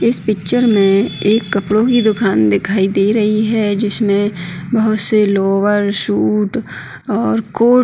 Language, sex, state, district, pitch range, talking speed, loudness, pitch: Hindi, female, Uttarakhand, Tehri Garhwal, 195-220 Hz, 145 wpm, -14 LUFS, 205 Hz